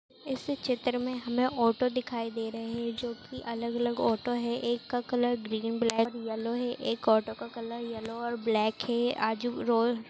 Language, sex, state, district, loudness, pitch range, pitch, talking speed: Hindi, female, Maharashtra, Dhule, -31 LUFS, 230-245 Hz, 235 Hz, 195 wpm